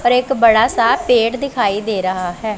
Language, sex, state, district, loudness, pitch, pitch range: Hindi, female, Punjab, Pathankot, -15 LUFS, 230 Hz, 205-250 Hz